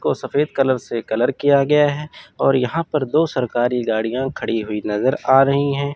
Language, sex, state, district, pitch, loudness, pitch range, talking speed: Hindi, male, Chandigarh, Chandigarh, 135 Hz, -19 LUFS, 125-145 Hz, 200 wpm